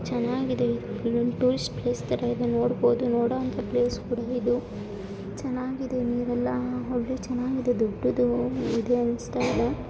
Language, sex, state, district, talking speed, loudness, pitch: Kannada, female, Karnataka, Chamarajanagar, 110 wpm, -27 LUFS, 240 Hz